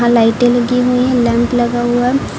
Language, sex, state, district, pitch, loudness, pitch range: Hindi, female, Uttar Pradesh, Lucknow, 245 Hz, -13 LUFS, 240-250 Hz